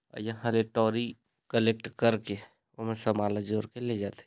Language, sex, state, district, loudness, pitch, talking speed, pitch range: Chhattisgarhi, male, Chhattisgarh, Raigarh, -31 LUFS, 115 Hz, 170 wpm, 110-115 Hz